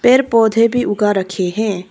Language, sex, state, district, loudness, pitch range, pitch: Hindi, female, Arunachal Pradesh, Papum Pare, -15 LUFS, 195-230 Hz, 215 Hz